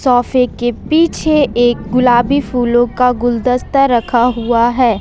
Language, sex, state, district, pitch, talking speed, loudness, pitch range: Hindi, female, Jharkhand, Ranchi, 245 Hz, 130 wpm, -13 LUFS, 240-255 Hz